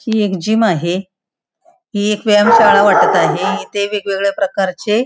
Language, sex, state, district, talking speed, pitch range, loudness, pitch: Marathi, female, Maharashtra, Pune, 165 wpm, 200-225 Hz, -14 LUFS, 210 Hz